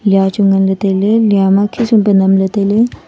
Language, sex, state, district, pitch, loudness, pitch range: Wancho, female, Arunachal Pradesh, Longding, 200 Hz, -12 LUFS, 195-210 Hz